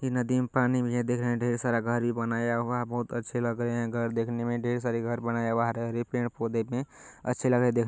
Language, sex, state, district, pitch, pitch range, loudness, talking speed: Hindi, male, Bihar, Kishanganj, 120 Hz, 115-120 Hz, -29 LUFS, 280 wpm